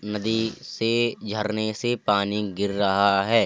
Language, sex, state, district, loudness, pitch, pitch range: Hindi, male, Uttar Pradesh, Hamirpur, -24 LUFS, 105 Hz, 100-115 Hz